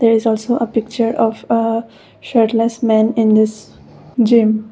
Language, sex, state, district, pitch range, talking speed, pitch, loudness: English, female, Assam, Kamrup Metropolitan, 220-230 Hz, 150 wpm, 225 Hz, -15 LUFS